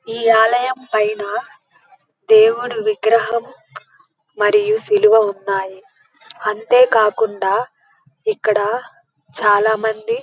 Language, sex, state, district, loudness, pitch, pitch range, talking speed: Telugu, female, Andhra Pradesh, Krishna, -16 LUFS, 225 Hz, 215-255 Hz, 80 wpm